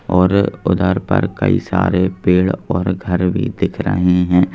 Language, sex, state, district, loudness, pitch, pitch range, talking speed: Hindi, male, Madhya Pradesh, Bhopal, -16 LUFS, 90 Hz, 90-95 Hz, 160 wpm